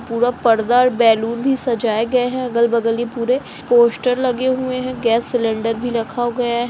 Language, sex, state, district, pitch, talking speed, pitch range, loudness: Hindi, female, Uttar Pradesh, Jalaun, 240 Hz, 180 wpm, 230-250 Hz, -17 LUFS